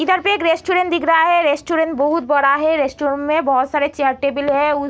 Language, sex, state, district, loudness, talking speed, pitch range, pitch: Hindi, female, Bihar, Araria, -16 LUFS, 245 wpm, 280-330 Hz, 295 Hz